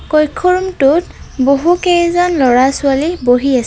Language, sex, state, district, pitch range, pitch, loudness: Assamese, female, Assam, Kamrup Metropolitan, 270-350 Hz, 290 Hz, -12 LUFS